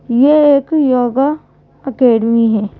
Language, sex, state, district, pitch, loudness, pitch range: Hindi, female, Madhya Pradesh, Bhopal, 260 Hz, -12 LUFS, 230-285 Hz